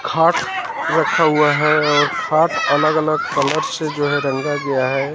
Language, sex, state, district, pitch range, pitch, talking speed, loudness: Hindi, male, Haryana, Jhajjar, 145-155 Hz, 145 Hz, 175 wpm, -17 LUFS